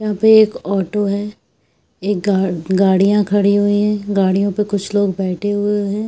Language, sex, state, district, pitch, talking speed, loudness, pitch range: Hindi, female, Jharkhand, Jamtara, 205 Hz, 180 wpm, -16 LUFS, 195-210 Hz